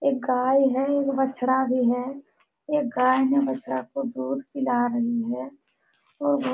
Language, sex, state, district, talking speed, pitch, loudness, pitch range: Hindi, female, Uttar Pradesh, Jalaun, 155 wpm, 265 Hz, -24 LUFS, 250-275 Hz